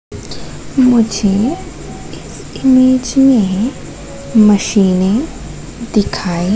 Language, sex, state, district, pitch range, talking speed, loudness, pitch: Hindi, female, Madhya Pradesh, Katni, 200-255 Hz, 55 wpm, -13 LUFS, 225 Hz